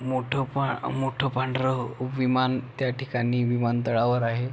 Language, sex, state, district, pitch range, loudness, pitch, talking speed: Marathi, male, Maharashtra, Pune, 120-130 Hz, -26 LUFS, 130 Hz, 120 wpm